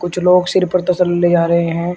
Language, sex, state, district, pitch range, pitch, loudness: Hindi, male, Uttar Pradesh, Shamli, 175-180 Hz, 175 Hz, -14 LUFS